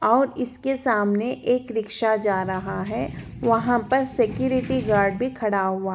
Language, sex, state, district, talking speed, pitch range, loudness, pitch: Hindi, female, Chhattisgarh, Jashpur, 150 wpm, 205-255 Hz, -23 LUFS, 235 Hz